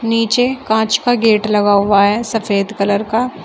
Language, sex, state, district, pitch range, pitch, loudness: Hindi, female, Uttar Pradesh, Shamli, 205-230 Hz, 220 Hz, -14 LUFS